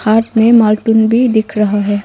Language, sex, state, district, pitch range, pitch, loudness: Hindi, female, Arunachal Pradesh, Longding, 210-225 Hz, 220 Hz, -11 LUFS